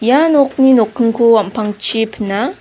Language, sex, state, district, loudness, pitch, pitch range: Garo, female, Meghalaya, South Garo Hills, -13 LUFS, 235 Hz, 215-265 Hz